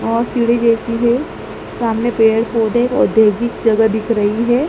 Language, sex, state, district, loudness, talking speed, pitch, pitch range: Hindi, male, Madhya Pradesh, Dhar, -15 LUFS, 155 wpm, 230 Hz, 225-235 Hz